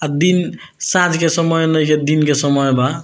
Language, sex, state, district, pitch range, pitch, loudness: Bhojpuri, male, Bihar, Muzaffarpur, 145-165 Hz, 155 Hz, -15 LUFS